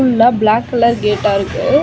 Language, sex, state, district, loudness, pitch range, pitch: Tamil, female, Tamil Nadu, Chennai, -14 LUFS, 210-245 Hz, 235 Hz